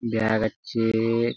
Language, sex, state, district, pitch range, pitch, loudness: Bengali, male, West Bengal, Jhargram, 110-115 Hz, 115 Hz, -24 LUFS